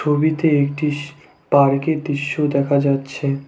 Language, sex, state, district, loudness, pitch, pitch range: Bengali, male, West Bengal, Cooch Behar, -18 LUFS, 145 Hz, 140-150 Hz